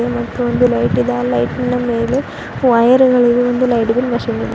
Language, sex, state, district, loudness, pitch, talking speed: Kannada, female, Karnataka, Bidar, -14 LUFS, 240 Hz, 170 wpm